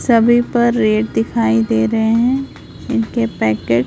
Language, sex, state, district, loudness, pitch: Hindi, female, Chhattisgarh, Raipur, -15 LUFS, 225 Hz